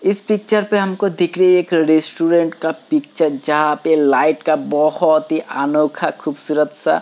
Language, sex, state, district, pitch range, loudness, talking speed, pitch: Hindi, male, Uttar Pradesh, Hamirpur, 150-185 Hz, -16 LUFS, 170 wpm, 160 Hz